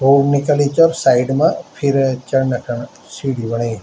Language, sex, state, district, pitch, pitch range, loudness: Garhwali, male, Uttarakhand, Tehri Garhwal, 135 Hz, 125-140 Hz, -16 LUFS